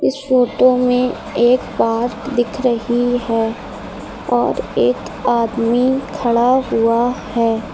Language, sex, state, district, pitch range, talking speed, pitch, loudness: Hindi, female, Uttar Pradesh, Lucknow, 230-255 Hz, 100 wpm, 245 Hz, -16 LUFS